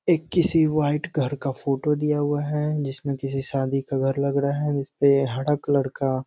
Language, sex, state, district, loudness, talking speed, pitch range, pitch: Hindi, male, Bihar, Sitamarhi, -23 LUFS, 220 wpm, 135-150 Hz, 140 Hz